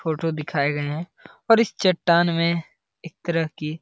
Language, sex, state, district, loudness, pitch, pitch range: Hindi, male, Bihar, Lakhisarai, -22 LUFS, 165 Hz, 155-175 Hz